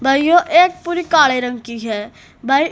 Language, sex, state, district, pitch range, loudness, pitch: Hindi, female, Haryana, Rohtak, 245-345 Hz, -15 LUFS, 280 Hz